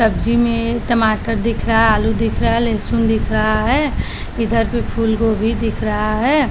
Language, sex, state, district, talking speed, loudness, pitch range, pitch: Hindi, female, Maharashtra, Chandrapur, 175 wpm, -17 LUFS, 220-235 Hz, 225 Hz